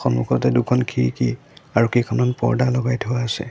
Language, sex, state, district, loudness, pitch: Assamese, male, Assam, Sonitpur, -20 LUFS, 120 Hz